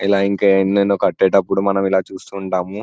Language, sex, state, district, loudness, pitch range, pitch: Telugu, male, Telangana, Karimnagar, -17 LUFS, 95-100 Hz, 100 Hz